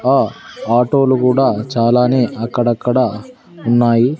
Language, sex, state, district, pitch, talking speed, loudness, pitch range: Telugu, male, Andhra Pradesh, Sri Satya Sai, 120 Hz, 100 wpm, -15 LUFS, 115-130 Hz